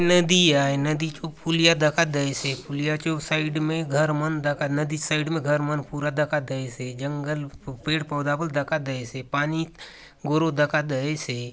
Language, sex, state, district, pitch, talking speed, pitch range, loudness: Halbi, male, Chhattisgarh, Bastar, 150 Hz, 165 wpm, 140-155 Hz, -24 LUFS